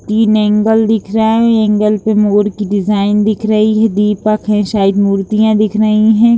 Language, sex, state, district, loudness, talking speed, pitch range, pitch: Hindi, female, Chhattisgarh, Kabirdham, -12 LUFS, 195 wpm, 210-220 Hz, 215 Hz